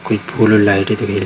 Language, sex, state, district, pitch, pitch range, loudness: Hindi, male, Bihar, Darbhanga, 105 Hz, 100-110 Hz, -14 LUFS